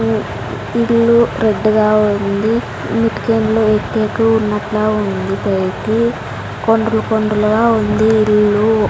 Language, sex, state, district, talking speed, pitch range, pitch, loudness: Telugu, female, Andhra Pradesh, Sri Satya Sai, 95 wpm, 210-225 Hz, 215 Hz, -15 LUFS